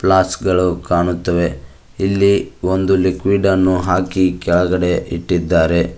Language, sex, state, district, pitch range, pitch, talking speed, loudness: Kannada, male, Karnataka, Koppal, 85-95 Hz, 90 Hz, 100 wpm, -16 LUFS